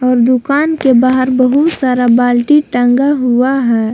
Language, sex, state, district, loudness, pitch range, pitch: Hindi, female, Jharkhand, Palamu, -11 LUFS, 245-275 Hz, 255 Hz